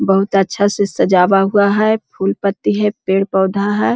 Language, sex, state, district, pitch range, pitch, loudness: Hindi, female, Bihar, Jahanabad, 195-205 Hz, 195 Hz, -15 LUFS